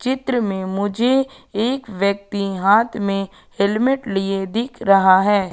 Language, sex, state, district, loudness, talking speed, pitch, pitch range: Hindi, female, Madhya Pradesh, Katni, -19 LUFS, 130 wpm, 200 Hz, 195-240 Hz